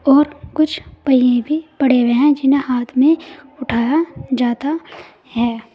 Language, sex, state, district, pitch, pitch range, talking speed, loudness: Hindi, female, Uttar Pradesh, Saharanpur, 275 Hz, 245-300 Hz, 135 wpm, -16 LUFS